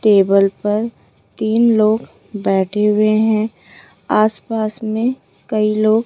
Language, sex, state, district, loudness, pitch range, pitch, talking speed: Hindi, female, Rajasthan, Jaipur, -16 LUFS, 210-220 Hz, 215 Hz, 120 wpm